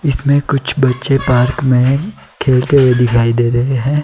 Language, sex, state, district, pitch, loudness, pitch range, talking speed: Hindi, male, Himachal Pradesh, Shimla, 130 Hz, -13 LUFS, 125-140 Hz, 165 wpm